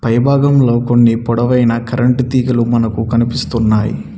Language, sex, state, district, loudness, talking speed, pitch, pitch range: Telugu, male, Telangana, Mahabubabad, -13 LUFS, 115 wpm, 120 Hz, 115-125 Hz